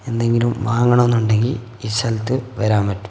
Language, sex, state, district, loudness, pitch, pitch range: Malayalam, male, Kerala, Kasaragod, -18 LUFS, 115 Hz, 110-120 Hz